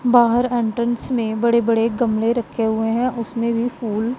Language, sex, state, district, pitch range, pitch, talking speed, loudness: Hindi, female, Punjab, Pathankot, 225-240 Hz, 235 Hz, 170 wpm, -19 LUFS